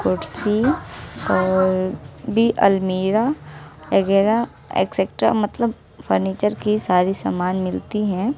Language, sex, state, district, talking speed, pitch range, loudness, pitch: Hindi, female, Bihar, West Champaran, 95 wpm, 185-220 Hz, -20 LUFS, 200 Hz